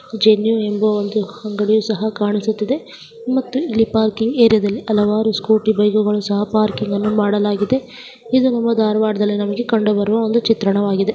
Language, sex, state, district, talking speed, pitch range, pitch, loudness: Kannada, female, Karnataka, Dharwad, 110 wpm, 210-225 Hz, 215 Hz, -17 LUFS